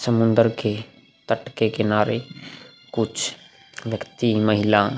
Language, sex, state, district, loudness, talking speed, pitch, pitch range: Hindi, male, Goa, North and South Goa, -22 LUFS, 110 wpm, 115 Hz, 105-115 Hz